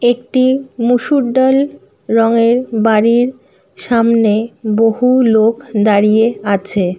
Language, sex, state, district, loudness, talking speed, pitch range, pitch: Bengali, female, West Bengal, Kolkata, -13 LUFS, 95 wpm, 220-250 Hz, 230 Hz